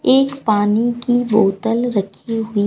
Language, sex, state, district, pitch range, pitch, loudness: Hindi, female, Bihar, West Champaran, 205-245 Hz, 225 Hz, -17 LUFS